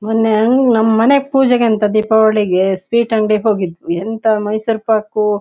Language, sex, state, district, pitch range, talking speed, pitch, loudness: Kannada, female, Karnataka, Shimoga, 210-225 Hz, 135 wpm, 220 Hz, -14 LUFS